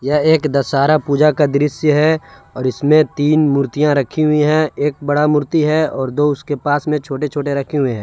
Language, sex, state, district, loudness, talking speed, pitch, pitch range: Hindi, male, Jharkhand, Palamu, -15 LUFS, 210 wpm, 150 Hz, 140-150 Hz